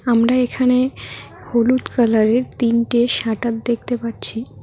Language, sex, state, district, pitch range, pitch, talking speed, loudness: Bengali, female, West Bengal, Cooch Behar, 230-250 Hz, 235 Hz, 115 wpm, -18 LUFS